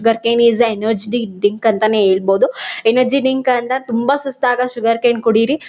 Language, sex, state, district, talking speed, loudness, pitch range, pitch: Kannada, female, Karnataka, Mysore, 170 wpm, -15 LUFS, 225-255 Hz, 235 Hz